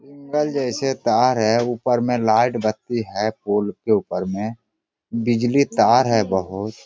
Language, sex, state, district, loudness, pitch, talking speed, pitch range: Hindi, male, Jharkhand, Sahebganj, -20 LUFS, 115 Hz, 150 wpm, 105-125 Hz